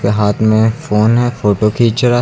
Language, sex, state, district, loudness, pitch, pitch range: Hindi, male, Uttar Pradesh, Lucknow, -13 LUFS, 110 Hz, 105-120 Hz